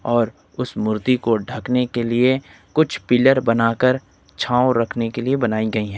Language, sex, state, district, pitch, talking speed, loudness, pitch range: Hindi, male, Uttar Pradesh, Lucknow, 120 Hz, 170 wpm, -19 LUFS, 110-125 Hz